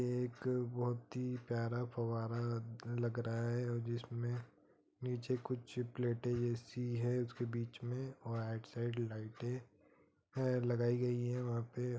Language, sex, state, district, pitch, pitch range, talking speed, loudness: Hindi, male, Bihar, Gopalganj, 120 Hz, 120-125 Hz, 140 wpm, -40 LUFS